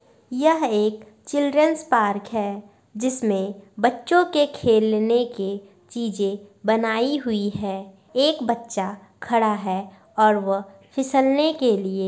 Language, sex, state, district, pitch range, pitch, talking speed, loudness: Hindi, female, Bihar, Madhepura, 200-250 Hz, 220 Hz, 120 wpm, -22 LUFS